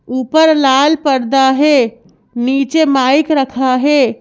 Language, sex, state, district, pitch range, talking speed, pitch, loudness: Hindi, female, Madhya Pradesh, Bhopal, 255-295 Hz, 115 wpm, 270 Hz, -12 LUFS